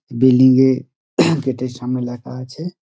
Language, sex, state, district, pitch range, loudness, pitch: Bengali, male, West Bengal, Dakshin Dinajpur, 125-135 Hz, -17 LUFS, 130 Hz